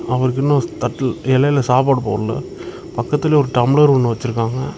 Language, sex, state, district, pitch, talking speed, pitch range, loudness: Tamil, male, Tamil Nadu, Namakkal, 130 Hz, 140 wpm, 120-140 Hz, -17 LUFS